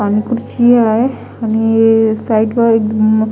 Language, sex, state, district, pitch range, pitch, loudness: Marathi, female, Maharashtra, Washim, 220-230 Hz, 225 Hz, -13 LUFS